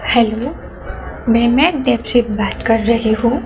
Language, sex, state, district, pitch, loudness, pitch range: Hindi, female, Gujarat, Gandhinagar, 235 Hz, -15 LUFS, 225-245 Hz